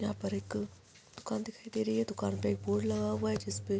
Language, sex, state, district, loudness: Hindi, female, Chhattisgarh, Korba, -35 LUFS